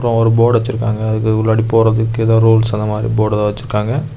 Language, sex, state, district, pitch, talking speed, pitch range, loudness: Tamil, male, Tamil Nadu, Kanyakumari, 110 Hz, 175 wpm, 110-115 Hz, -14 LUFS